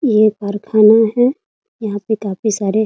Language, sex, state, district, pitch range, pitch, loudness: Hindi, female, Bihar, Muzaffarpur, 205-230 Hz, 215 Hz, -15 LUFS